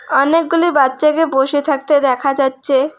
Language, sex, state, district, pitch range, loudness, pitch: Bengali, female, West Bengal, Alipurduar, 270-305 Hz, -14 LUFS, 285 Hz